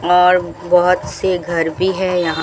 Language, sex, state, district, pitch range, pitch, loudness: Hindi, female, Rajasthan, Bikaner, 175-180 Hz, 180 Hz, -16 LUFS